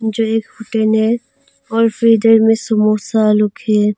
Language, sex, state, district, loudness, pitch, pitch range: Hindi, female, Arunachal Pradesh, Longding, -14 LUFS, 220 Hz, 215-225 Hz